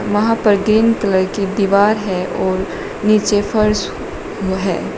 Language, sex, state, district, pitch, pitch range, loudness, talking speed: Hindi, female, Uttar Pradesh, Shamli, 205 Hz, 190-215 Hz, -16 LUFS, 130 wpm